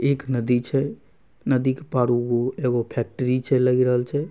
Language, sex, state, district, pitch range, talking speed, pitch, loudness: Angika, male, Bihar, Begusarai, 125-135 Hz, 195 wpm, 125 Hz, -22 LUFS